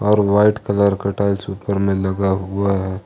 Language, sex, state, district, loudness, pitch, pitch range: Hindi, male, Jharkhand, Ranchi, -18 LUFS, 100 Hz, 95-100 Hz